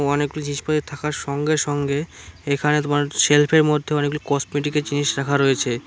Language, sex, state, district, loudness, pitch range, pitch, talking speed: Bengali, male, West Bengal, Cooch Behar, -20 LUFS, 140-150 Hz, 145 Hz, 145 wpm